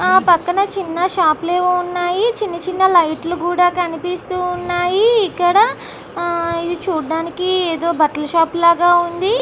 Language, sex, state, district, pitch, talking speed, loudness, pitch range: Telugu, female, Andhra Pradesh, Anantapur, 355 Hz, 145 wpm, -16 LUFS, 340-370 Hz